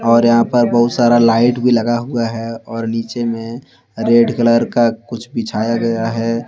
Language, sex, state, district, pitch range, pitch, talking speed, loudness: Hindi, male, Jharkhand, Deoghar, 115-120 Hz, 115 Hz, 185 wpm, -15 LUFS